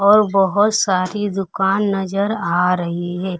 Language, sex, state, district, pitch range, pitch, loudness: Hindi, female, Bihar, Kaimur, 185-205 Hz, 195 Hz, -18 LUFS